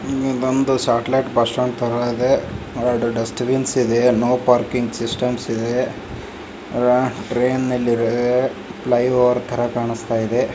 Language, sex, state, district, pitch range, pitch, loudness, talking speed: Kannada, male, Karnataka, Bijapur, 120-125 Hz, 125 Hz, -19 LUFS, 85 wpm